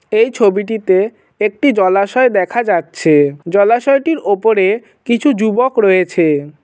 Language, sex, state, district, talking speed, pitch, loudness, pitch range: Bengali, male, West Bengal, Jalpaiguri, 100 wpm, 205 Hz, -13 LUFS, 185-235 Hz